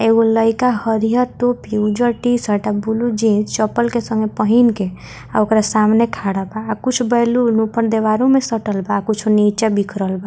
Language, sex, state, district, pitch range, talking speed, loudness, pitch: Bhojpuri, female, Bihar, Muzaffarpur, 210-235 Hz, 185 wpm, -16 LUFS, 220 Hz